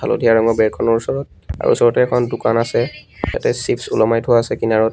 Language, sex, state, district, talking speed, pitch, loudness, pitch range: Assamese, male, Assam, Sonitpur, 180 wpm, 115 Hz, -17 LUFS, 115-120 Hz